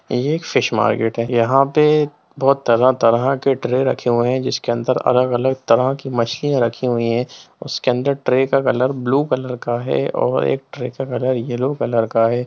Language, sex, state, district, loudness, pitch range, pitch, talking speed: Hindi, male, Bihar, Jamui, -18 LUFS, 120-135 Hz, 125 Hz, 190 wpm